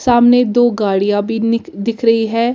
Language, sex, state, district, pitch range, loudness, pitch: Hindi, female, Delhi, New Delhi, 220-240 Hz, -14 LUFS, 230 Hz